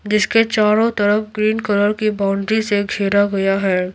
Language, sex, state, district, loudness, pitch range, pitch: Hindi, female, Bihar, Patna, -17 LUFS, 200-215 Hz, 210 Hz